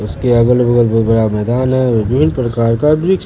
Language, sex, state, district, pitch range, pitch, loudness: Hindi, male, Bihar, Katihar, 115-130 Hz, 120 Hz, -13 LUFS